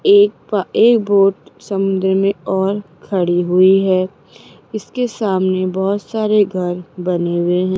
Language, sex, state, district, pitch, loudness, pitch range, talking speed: Hindi, female, Rajasthan, Jaipur, 190 Hz, -16 LUFS, 185-205 Hz, 140 wpm